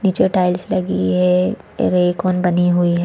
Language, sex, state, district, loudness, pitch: Hindi, female, Chhattisgarh, Bastar, -17 LUFS, 175 Hz